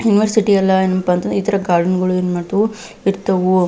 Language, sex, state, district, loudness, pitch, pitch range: Kannada, female, Karnataka, Belgaum, -16 LUFS, 190 Hz, 185-205 Hz